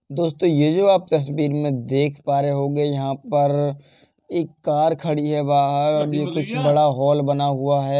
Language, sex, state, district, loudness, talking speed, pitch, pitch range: Hindi, male, Uttar Pradesh, Jalaun, -20 LUFS, 185 wpm, 145 Hz, 140-150 Hz